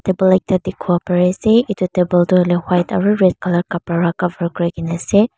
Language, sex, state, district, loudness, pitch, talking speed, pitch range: Nagamese, female, Mizoram, Aizawl, -16 LUFS, 180 Hz, 200 wpm, 175-190 Hz